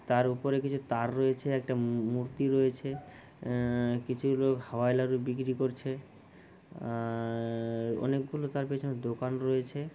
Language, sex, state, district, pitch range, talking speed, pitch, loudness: Bengali, male, West Bengal, Malda, 120-135 Hz, 135 wpm, 130 Hz, -32 LUFS